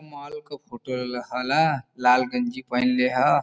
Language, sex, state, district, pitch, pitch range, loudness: Bhojpuri, male, Uttar Pradesh, Varanasi, 125 Hz, 125-145 Hz, -23 LUFS